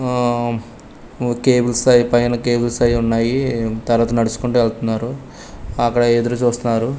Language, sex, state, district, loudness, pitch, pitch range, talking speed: Telugu, male, Andhra Pradesh, Manyam, -17 LUFS, 120 Hz, 115-120 Hz, 120 wpm